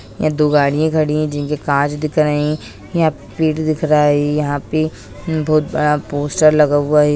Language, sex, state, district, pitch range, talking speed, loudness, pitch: Hindi, female, Rajasthan, Nagaur, 145-155 Hz, 200 wpm, -16 LUFS, 150 Hz